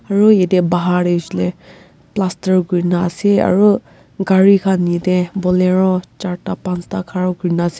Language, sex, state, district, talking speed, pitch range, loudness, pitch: Nagamese, female, Nagaland, Kohima, 140 wpm, 180-195 Hz, -15 LUFS, 185 Hz